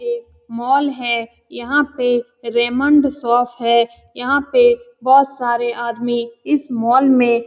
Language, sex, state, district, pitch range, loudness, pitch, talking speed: Hindi, female, Bihar, Saran, 235-280 Hz, -17 LUFS, 245 Hz, 135 wpm